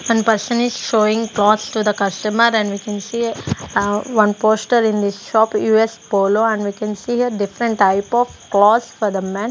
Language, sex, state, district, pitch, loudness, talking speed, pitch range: English, female, Punjab, Kapurthala, 215 Hz, -17 LUFS, 200 wpm, 205-230 Hz